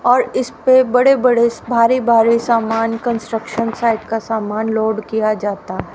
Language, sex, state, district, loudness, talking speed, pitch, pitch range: Hindi, female, Haryana, Rohtak, -16 LUFS, 150 wpm, 230 Hz, 220-240 Hz